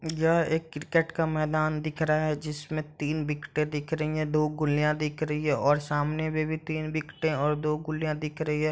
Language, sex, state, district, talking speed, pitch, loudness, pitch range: Hindi, male, Bihar, East Champaran, 215 wpm, 155 Hz, -28 LUFS, 150-155 Hz